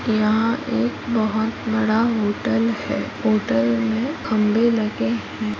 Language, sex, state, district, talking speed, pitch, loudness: Hindi, female, Chhattisgarh, Kabirdham, 120 wpm, 215 Hz, -21 LUFS